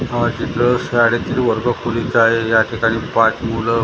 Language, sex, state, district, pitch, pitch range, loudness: Marathi, male, Maharashtra, Gondia, 115 Hz, 115-120 Hz, -16 LUFS